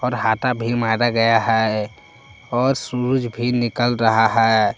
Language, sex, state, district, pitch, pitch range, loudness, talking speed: Hindi, male, Jharkhand, Palamu, 120 Hz, 110-125 Hz, -19 LUFS, 140 wpm